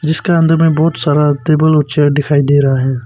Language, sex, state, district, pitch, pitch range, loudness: Hindi, male, Arunachal Pradesh, Papum Pare, 150 Hz, 145-160 Hz, -12 LUFS